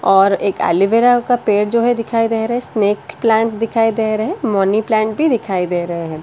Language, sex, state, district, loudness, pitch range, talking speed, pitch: Hindi, female, Delhi, New Delhi, -16 LUFS, 200-230 Hz, 240 wpm, 220 Hz